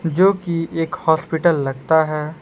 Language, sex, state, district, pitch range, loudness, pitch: Hindi, male, Jharkhand, Palamu, 155-170 Hz, -19 LUFS, 160 Hz